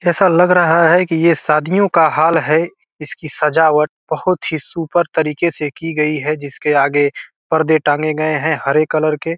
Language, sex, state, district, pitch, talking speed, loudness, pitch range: Hindi, male, Bihar, Gopalganj, 160 Hz, 205 wpm, -15 LUFS, 150-170 Hz